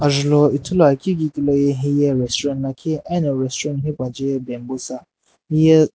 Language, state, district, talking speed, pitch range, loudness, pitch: Sumi, Nagaland, Dimapur, 150 wpm, 135-150 Hz, -19 LUFS, 145 Hz